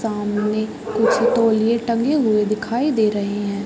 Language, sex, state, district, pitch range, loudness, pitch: Hindi, female, Bihar, Sitamarhi, 210-230 Hz, -19 LUFS, 215 Hz